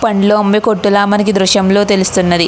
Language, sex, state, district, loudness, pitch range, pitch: Telugu, female, Andhra Pradesh, Krishna, -11 LUFS, 195-210 Hz, 205 Hz